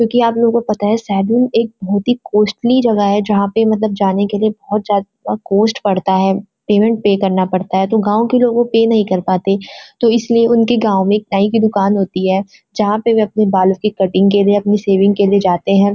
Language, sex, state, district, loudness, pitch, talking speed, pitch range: Hindi, female, Uttarakhand, Uttarkashi, -14 LUFS, 205 Hz, 235 wpm, 195-225 Hz